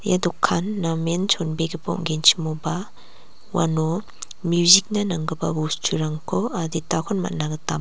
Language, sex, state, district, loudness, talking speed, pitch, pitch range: Garo, female, Meghalaya, West Garo Hills, -22 LUFS, 90 wpm, 170 Hz, 160-185 Hz